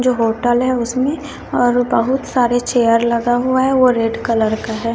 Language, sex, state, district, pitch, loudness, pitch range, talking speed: Hindi, female, Bihar, West Champaran, 245 Hz, -16 LUFS, 230-255 Hz, 195 wpm